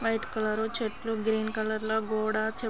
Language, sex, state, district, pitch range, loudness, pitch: Telugu, female, Andhra Pradesh, Srikakulam, 220-225 Hz, -30 LUFS, 220 Hz